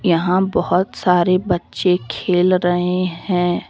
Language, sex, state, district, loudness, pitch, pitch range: Hindi, female, Jharkhand, Deoghar, -17 LUFS, 180 Hz, 175-185 Hz